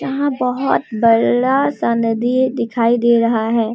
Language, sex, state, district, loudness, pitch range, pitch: Hindi, female, Jharkhand, Deoghar, -16 LUFS, 230-260 Hz, 235 Hz